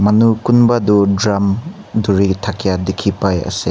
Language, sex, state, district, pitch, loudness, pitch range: Nagamese, male, Nagaland, Kohima, 100 Hz, -15 LUFS, 100-110 Hz